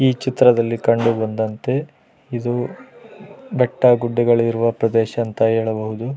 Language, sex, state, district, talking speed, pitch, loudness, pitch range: Kannada, male, Karnataka, Raichur, 115 wpm, 115 Hz, -18 LUFS, 115-125 Hz